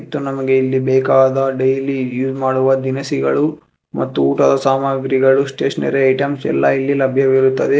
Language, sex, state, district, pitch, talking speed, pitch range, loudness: Kannada, male, Karnataka, Bangalore, 135 Hz, 125 wpm, 130-135 Hz, -15 LUFS